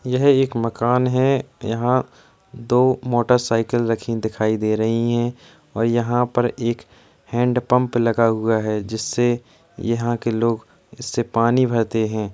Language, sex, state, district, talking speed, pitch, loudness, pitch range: Hindi, male, Uttar Pradesh, Jalaun, 135 wpm, 120 Hz, -20 LUFS, 115-125 Hz